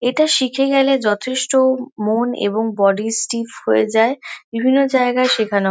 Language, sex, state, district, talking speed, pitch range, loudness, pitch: Bengali, female, West Bengal, Kolkata, 135 wpm, 220-260 Hz, -17 LUFS, 245 Hz